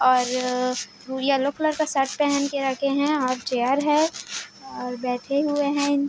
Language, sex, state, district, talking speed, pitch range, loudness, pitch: Hindi, female, Chhattisgarh, Bilaspur, 165 wpm, 255-285 Hz, -24 LUFS, 275 Hz